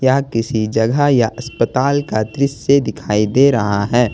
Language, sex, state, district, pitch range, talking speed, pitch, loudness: Hindi, male, Jharkhand, Ranchi, 110-140 Hz, 175 wpm, 125 Hz, -16 LUFS